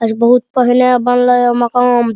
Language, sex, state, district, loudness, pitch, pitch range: Maithili, male, Bihar, Araria, -11 LUFS, 245 Hz, 240-245 Hz